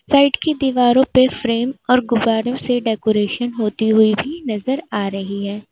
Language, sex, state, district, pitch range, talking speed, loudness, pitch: Hindi, female, Uttar Pradesh, Lalitpur, 215-255 Hz, 170 wpm, -17 LUFS, 240 Hz